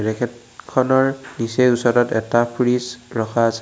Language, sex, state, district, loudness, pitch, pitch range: Assamese, male, Assam, Kamrup Metropolitan, -19 LUFS, 120 Hz, 115-125 Hz